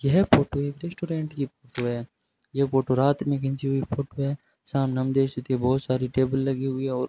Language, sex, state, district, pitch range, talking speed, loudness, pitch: Hindi, male, Rajasthan, Bikaner, 130-140 Hz, 235 wpm, -26 LUFS, 135 Hz